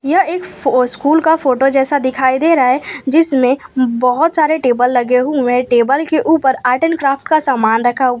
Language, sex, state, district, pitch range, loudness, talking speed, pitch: Hindi, female, Gujarat, Valsad, 250-310 Hz, -13 LUFS, 195 wpm, 270 Hz